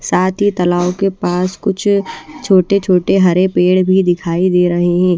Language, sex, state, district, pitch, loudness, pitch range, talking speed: Hindi, female, Odisha, Malkangiri, 185 Hz, -13 LUFS, 180-195 Hz, 160 wpm